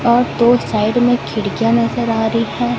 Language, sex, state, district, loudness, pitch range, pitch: Hindi, female, Chhattisgarh, Raipur, -15 LUFS, 225-240 Hz, 235 Hz